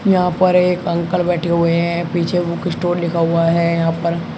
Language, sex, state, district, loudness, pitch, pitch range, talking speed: Hindi, male, Uttar Pradesh, Shamli, -17 LUFS, 170 Hz, 170-180 Hz, 205 wpm